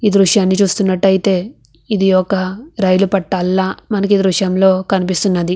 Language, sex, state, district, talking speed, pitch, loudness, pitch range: Telugu, female, Andhra Pradesh, Visakhapatnam, 110 wpm, 190 Hz, -14 LUFS, 185-200 Hz